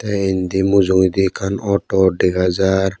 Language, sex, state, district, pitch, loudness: Chakma, male, Tripura, West Tripura, 95 Hz, -16 LUFS